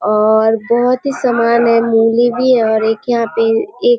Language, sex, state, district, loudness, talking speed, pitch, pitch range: Hindi, female, Bihar, Kishanganj, -13 LUFS, 180 wpm, 235 Hz, 225-250 Hz